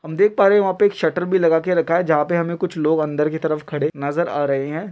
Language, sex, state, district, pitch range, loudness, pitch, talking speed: Hindi, male, West Bengal, Kolkata, 150-180 Hz, -19 LUFS, 165 Hz, 315 wpm